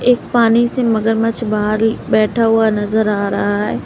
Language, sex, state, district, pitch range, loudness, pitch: Hindi, female, Uttar Pradesh, Lalitpur, 210-230 Hz, -15 LUFS, 220 Hz